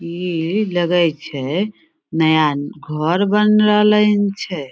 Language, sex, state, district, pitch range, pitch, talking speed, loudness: Maithili, female, Bihar, Samastipur, 160-210 Hz, 180 Hz, 115 wpm, -17 LUFS